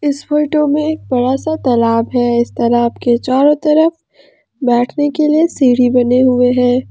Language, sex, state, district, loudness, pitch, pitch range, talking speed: Hindi, male, Jharkhand, Ranchi, -13 LUFS, 255 Hz, 245-300 Hz, 175 wpm